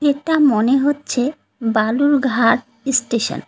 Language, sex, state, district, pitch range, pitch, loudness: Bengali, female, West Bengal, Cooch Behar, 230-285 Hz, 260 Hz, -17 LUFS